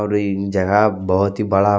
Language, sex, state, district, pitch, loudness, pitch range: Hindi, male, Jharkhand, Deoghar, 100 Hz, -18 LUFS, 95-105 Hz